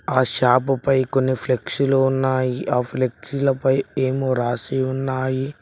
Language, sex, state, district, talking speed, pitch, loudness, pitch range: Telugu, male, Telangana, Mahabubabad, 105 wpm, 130 Hz, -21 LUFS, 130-135 Hz